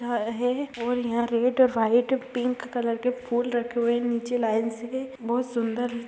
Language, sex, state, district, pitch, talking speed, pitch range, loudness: Hindi, female, Uttar Pradesh, Gorakhpur, 240 Hz, 180 wpm, 235-250 Hz, -26 LUFS